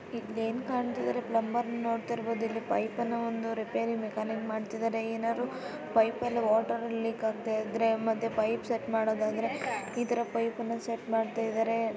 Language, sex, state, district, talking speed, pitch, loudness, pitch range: Kannada, female, Karnataka, Raichur, 135 wpm, 225 Hz, -32 LUFS, 225-230 Hz